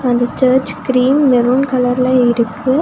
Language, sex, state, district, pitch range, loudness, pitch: Tamil, female, Tamil Nadu, Nilgiris, 245-260 Hz, -13 LUFS, 255 Hz